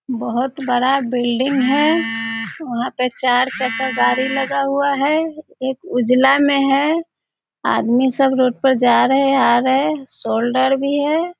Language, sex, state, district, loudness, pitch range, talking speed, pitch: Hindi, female, Bihar, Madhepura, -17 LUFS, 250-280 Hz, 150 wpm, 265 Hz